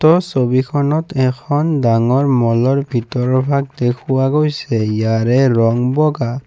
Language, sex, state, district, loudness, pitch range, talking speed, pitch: Assamese, male, Assam, Kamrup Metropolitan, -15 LUFS, 120-145 Hz, 120 wpm, 130 Hz